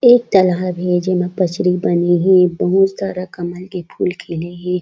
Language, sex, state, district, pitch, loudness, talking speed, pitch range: Chhattisgarhi, female, Chhattisgarh, Raigarh, 180 Hz, -16 LUFS, 175 wpm, 175-185 Hz